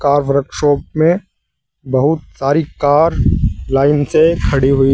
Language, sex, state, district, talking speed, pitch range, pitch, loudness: Hindi, male, Uttar Pradesh, Saharanpur, 120 wpm, 135-155 Hz, 145 Hz, -14 LUFS